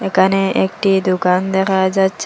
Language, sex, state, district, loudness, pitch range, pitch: Bengali, female, Assam, Hailakandi, -15 LUFS, 185-195 Hz, 190 Hz